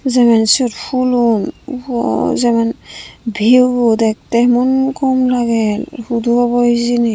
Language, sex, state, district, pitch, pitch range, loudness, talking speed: Chakma, female, Tripura, Unakoti, 240 Hz, 230-250 Hz, -14 LUFS, 110 wpm